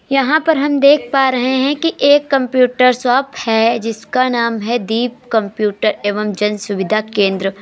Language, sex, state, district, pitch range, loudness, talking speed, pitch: Hindi, female, Uttar Pradesh, Jalaun, 215-270 Hz, -15 LUFS, 165 wpm, 240 Hz